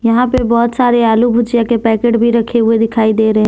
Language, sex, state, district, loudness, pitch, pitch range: Hindi, female, Jharkhand, Deoghar, -12 LUFS, 235 Hz, 225-240 Hz